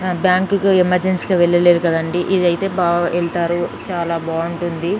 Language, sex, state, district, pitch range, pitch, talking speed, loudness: Telugu, female, Telangana, Nalgonda, 170-185 Hz, 175 Hz, 145 wpm, -17 LUFS